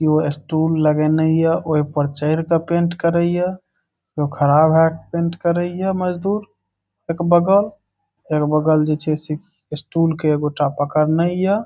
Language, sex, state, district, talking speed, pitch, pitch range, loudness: Maithili, male, Bihar, Saharsa, 165 wpm, 160 Hz, 150-170 Hz, -18 LUFS